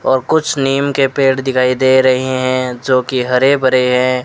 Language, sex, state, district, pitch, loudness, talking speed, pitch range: Hindi, male, Rajasthan, Bikaner, 130 Hz, -13 LUFS, 195 wpm, 125-135 Hz